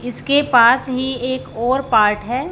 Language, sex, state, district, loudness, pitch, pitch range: Hindi, female, Punjab, Fazilka, -16 LUFS, 255 Hz, 235-260 Hz